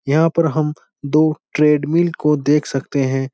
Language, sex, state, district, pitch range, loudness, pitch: Hindi, male, Bihar, Supaul, 145-155 Hz, -17 LUFS, 150 Hz